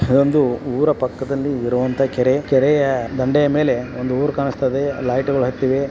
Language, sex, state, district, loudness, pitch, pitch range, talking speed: Kannada, male, Karnataka, Belgaum, -18 LUFS, 135 Hz, 130-140 Hz, 140 wpm